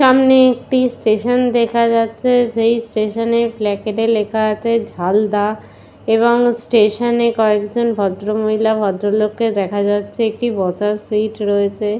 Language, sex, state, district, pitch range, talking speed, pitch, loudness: Bengali, female, West Bengal, Purulia, 210-235 Hz, 125 wpm, 220 Hz, -16 LUFS